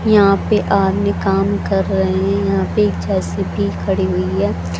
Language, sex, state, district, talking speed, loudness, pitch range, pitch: Hindi, female, Haryana, Jhajjar, 160 wpm, -17 LUFS, 190-200 Hz, 195 Hz